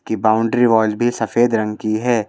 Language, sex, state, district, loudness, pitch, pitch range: Hindi, male, Madhya Pradesh, Bhopal, -17 LUFS, 110 Hz, 110-120 Hz